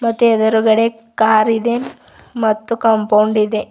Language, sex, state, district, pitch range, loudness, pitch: Kannada, female, Karnataka, Bidar, 215-230 Hz, -15 LUFS, 220 Hz